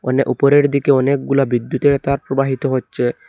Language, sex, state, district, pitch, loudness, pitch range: Bengali, male, Assam, Hailakandi, 135 Hz, -16 LUFS, 130-140 Hz